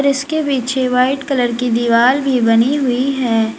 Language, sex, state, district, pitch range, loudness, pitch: Hindi, female, Uttar Pradesh, Lalitpur, 240-275 Hz, -15 LUFS, 255 Hz